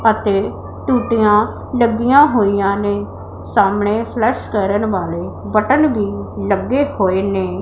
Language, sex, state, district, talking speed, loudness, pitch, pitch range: Punjabi, female, Punjab, Pathankot, 110 wpm, -16 LUFS, 205 Hz, 190-230 Hz